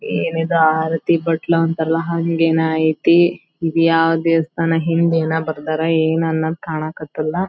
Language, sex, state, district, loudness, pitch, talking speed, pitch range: Kannada, female, Karnataka, Belgaum, -17 LUFS, 165 Hz, 135 wpm, 160-165 Hz